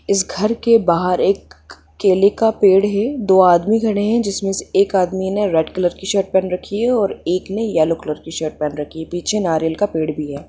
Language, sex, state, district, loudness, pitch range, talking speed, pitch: Hindi, female, Jharkhand, Sahebganj, -17 LUFS, 160-205 Hz, 235 wpm, 190 Hz